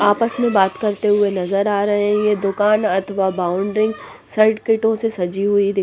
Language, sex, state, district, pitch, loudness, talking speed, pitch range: Hindi, female, Punjab, Pathankot, 205 Hz, -18 LUFS, 185 wpm, 195-215 Hz